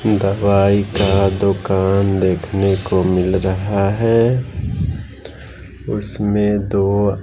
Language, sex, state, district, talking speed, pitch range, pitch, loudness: Hindi, male, Bihar, West Champaran, 85 wpm, 95-105 Hz, 100 Hz, -17 LUFS